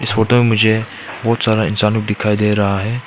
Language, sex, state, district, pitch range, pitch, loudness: Hindi, male, Arunachal Pradesh, Papum Pare, 105-115 Hz, 110 Hz, -15 LUFS